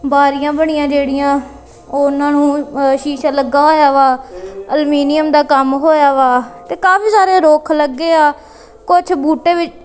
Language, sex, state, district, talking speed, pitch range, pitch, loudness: Punjabi, female, Punjab, Kapurthala, 145 wpm, 275-310 Hz, 290 Hz, -12 LUFS